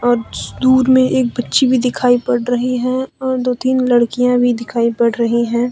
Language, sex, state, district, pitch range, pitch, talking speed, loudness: Hindi, female, Jharkhand, Deoghar, 240-255 Hz, 245 Hz, 190 wpm, -15 LUFS